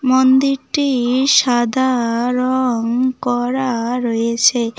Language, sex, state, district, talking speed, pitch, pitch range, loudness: Bengali, female, West Bengal, Cooch Behar, 65 wpm, 250 Hz, 240-260 Hz, -16 LUFS